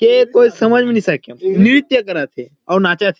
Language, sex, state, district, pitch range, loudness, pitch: Chhattisgarhi, male, Chhattisgarh, Rajnandgaon, 180-270 Hz, -13 LUFS, 210 Hz